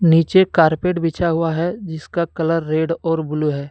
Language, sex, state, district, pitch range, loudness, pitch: Hindi, male, Jharkhand, Deoghar, 160-170 Hz, -18 LUFS, 165 Hz